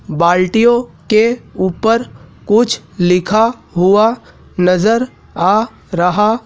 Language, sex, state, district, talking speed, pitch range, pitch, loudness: Hindi, male, Madhya Pradesh, Dhar, 85 wpm, 180-230 Hz, 215 Hz, -14 LUFS